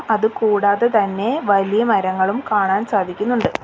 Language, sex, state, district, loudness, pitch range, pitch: Malayalam, female, Kerala, Kollam, -18 LUFS, 200-230 Hz, 210 Hz